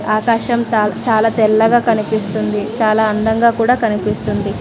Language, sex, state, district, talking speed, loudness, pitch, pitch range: Telugu, female, Telangana, Mahabubabad, 115 wpm, -15 LUFS, 220 Hz, 215-230 Hz